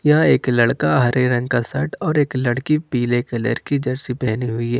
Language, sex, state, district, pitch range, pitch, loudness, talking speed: Hindi, male, Jharkhand, Ranchi, 120-140 Hz, 125 Hz, -19 LUFS, 215 wpm